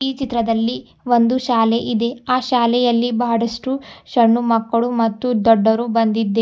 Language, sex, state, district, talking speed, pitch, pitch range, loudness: Kannada, female, Karnataka, Bidar, 120 wpm, 235 Hz, 230-245 Hz, -17 LUFS